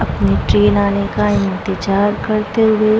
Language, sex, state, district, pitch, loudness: Hindi, female, Bihar, Vaishali, 105 Hz, -15 LUFS